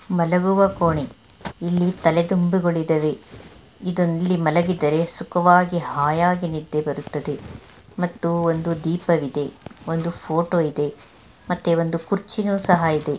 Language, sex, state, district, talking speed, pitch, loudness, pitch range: Kannada, female, Karnataka, Mysore, 115 wpm, 170 Hz, -21 LUFS, 155-180 Hz